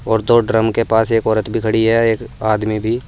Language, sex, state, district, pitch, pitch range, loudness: Hindi, male, Uttar Pradesh, Saharanpur, 115 Hz, 110-115 Hz, -16 LUFS